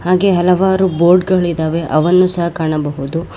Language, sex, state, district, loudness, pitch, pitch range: Kannada, female, Karnataka, Bangalore, -13 LUFS, 175 Hz, 160-185 Hz